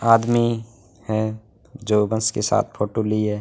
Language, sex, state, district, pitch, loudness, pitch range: Hindi, male, Rajasthan, Bikaner, 110 Hz, -21 LUFS, 105-115 Hz